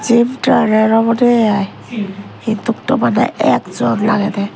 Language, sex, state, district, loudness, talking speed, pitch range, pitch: Chakma, female, Tripura, West Tripura, -14 LUFS, 90 wpm, 205-235 Hz, 220 Hz